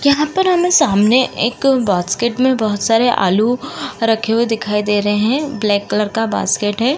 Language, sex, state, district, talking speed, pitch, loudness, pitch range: Hindi, female, Uttar Pradesh, Jalaun, 180 wpm, 225 Hz, -15 LUFS, 210-260 Hz